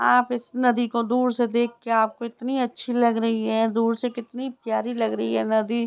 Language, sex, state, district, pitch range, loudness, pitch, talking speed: Hindi, female, Bihar, Begusarai, 225-245 Hz, -24 LUFS, 235 Hz, 225 wpm